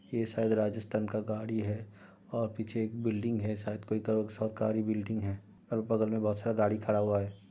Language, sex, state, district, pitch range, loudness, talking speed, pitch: Hindi, male, Uttar Pradesh, Budaun, 105-110 Hz, -33 LUFS, 200 wpm, 110 Hz